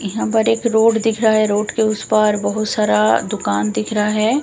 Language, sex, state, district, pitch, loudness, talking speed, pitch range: Hindi, female, Bihar, Katihar, 215 Hz, -17 LUFS, 230 wpm, 205-220 Hz